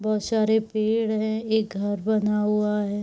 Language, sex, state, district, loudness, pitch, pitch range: Hindi, female, Chhattisgarh, Raigarh, -24 LUFS, 215 Hz, 210-220 Hz